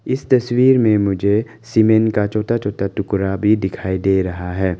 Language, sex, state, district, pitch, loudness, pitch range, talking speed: Hindi, male, Arunachal Pradesh, Longding, 105 Hz, -17 LUFS, 95-110 Hz, 175 wpm